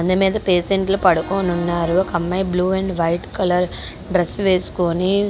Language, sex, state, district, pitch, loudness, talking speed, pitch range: Telugu, female, Andhra Pradesh, Guntur, 185 Hz, -19 LUFS, 135 wpm, 175-190 Hz